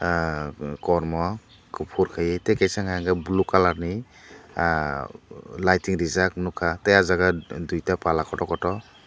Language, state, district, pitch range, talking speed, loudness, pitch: Kokborok, Tripura, Dhalai, 85-95 Hz, 140 wpm, -24 LUFS, 90 Hz